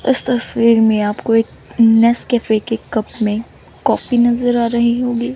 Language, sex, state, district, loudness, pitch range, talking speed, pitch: Hindi, female, Chandigarh, Chandigarh, -15 LUFS, 225-240 Hz, 155 wpm, 235 Hz